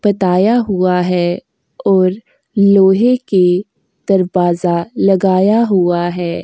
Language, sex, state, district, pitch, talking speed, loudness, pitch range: Hindi, female, Uttar Pradesh, Jyotiba Phule Nagar, 190 Hz, 95 wpm, -13 LUFS, 180-200 Hz